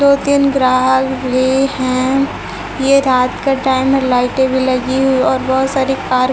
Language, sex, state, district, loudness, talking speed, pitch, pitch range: Hindi, female, Chhattisgarh, Raipur, -14 LUFS, 180 wpm, 260 Hz, 255-270 Hz